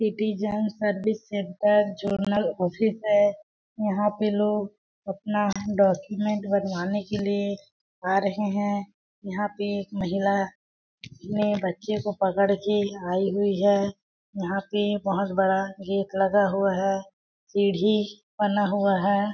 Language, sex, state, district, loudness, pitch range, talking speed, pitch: Hindi, female, Chhattisgarh, Balrampur, -25 LUFS, 195-210 Hz, 125 wpm, 200 Hz